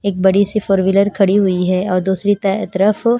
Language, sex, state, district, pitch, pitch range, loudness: Hindi, female, Himachal Pradesh, Shimla, 195 Hz, 190-205 Hz, -15 LUFS